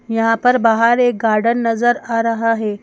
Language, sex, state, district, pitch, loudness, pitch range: Hindi, female, Madhya Pradesh, Bhopal, 230 Hz, -15 LUFS, 225-240 Hz